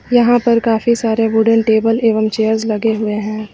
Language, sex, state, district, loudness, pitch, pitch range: Hindi, female, Uttar Pradesh, Lucknow, -14 LUFS, 225 Hz, 220-230 Hz